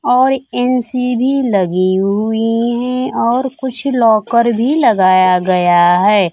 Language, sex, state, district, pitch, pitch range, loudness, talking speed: Hindi, female, Bihar, Kaimur, 235 Hz, 195-255 Hz, -13 LUFS, 115 wpm